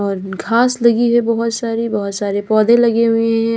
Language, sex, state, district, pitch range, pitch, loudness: Hindi, female, Uttar Pradesh, Lalitpur, 210-235 Hz, 230 Hz, -15 LUFS